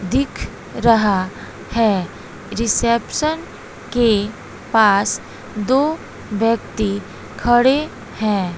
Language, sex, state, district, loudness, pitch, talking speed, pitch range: Hindi, female, Bihar, West Champaran, -18 LUFS, 225 Hz, 70 wpm, 205-240 Hz